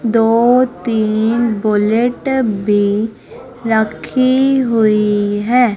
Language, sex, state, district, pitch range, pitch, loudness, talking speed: Hindi, female, Madhya Pradesh, Umaria, 210-245 Hz, 225 Hz, -14 LUFS, 75 wpm